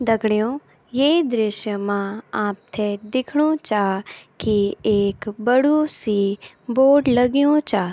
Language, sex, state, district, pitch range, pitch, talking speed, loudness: Garhwali, female, Uttarakhand, Tehri Garhwal, 205-265 Hz, 220 Hz, 115 wpm, -20 LUFS